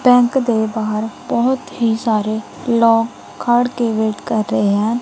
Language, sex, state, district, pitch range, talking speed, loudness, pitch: Punjabi, female, Punjab, Kapurthala, 220-240 Hz, 145 wpm, -17 LUFS, 230 Hz